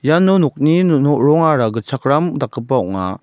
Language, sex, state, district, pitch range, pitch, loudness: Garo, male, Meghalaya, West Garo Hills, 125-160 Hz, 145 Hz, -15 LUFS